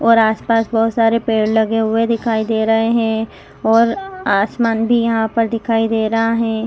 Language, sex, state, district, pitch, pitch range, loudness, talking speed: Hindi, female, Chhattisgarh, Rajnandgaon, 225 Hz, 220-230 Hz, -16 LUFS, 180 wpm